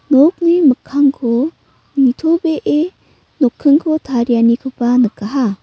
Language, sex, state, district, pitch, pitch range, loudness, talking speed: Garo, female, Meghalaya, North Garo Hills, 275 Hz, 245-310 Hz, -14 LUFS, 65 wpm